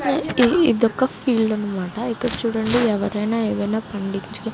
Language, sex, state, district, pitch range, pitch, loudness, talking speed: Telugu, female, Andhra Pradesh, Guntur, 210-240 Hz, 225 Hz, -21 LUFS, 105 wpm